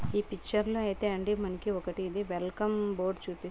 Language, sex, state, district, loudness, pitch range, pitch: Telugu, female, Andhra Pradesh, Guntur, -33 LUFS, 185-210 Hz, 200 Hz